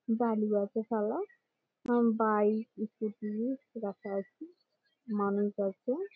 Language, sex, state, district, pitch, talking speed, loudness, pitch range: Bengali, female, West Bengal, Malda, 220 Hz, 90 wpm, -33 LUFS, 210-245 Hz